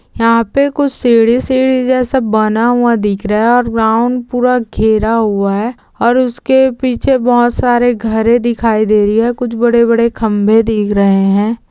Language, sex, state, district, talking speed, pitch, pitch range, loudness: Hindi, female, Rajasthan, Nagaur, 175 wpm, 235 Hz, 220-245 Hz, -12 LUFS